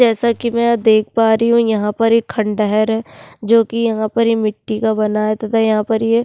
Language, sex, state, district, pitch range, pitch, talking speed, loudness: Hindi, female, Uttarakhand, Tehri Garhwal, 215-230 Hz, 225 Hz, 250 wpm, -15 LUFS